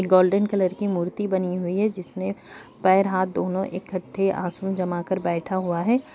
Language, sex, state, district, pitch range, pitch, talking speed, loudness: Hindi, female, Bihar, Kishanganj, 180-195 Hz, 190 Hz, 175 wpm, -24 LUFS